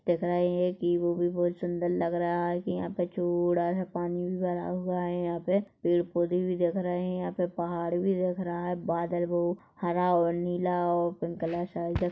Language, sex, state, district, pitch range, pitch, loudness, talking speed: Hindi, female, Chhattisgarh, Korba, 175-180 Hz, 175 Hz, -29 LUFS, 205 wpm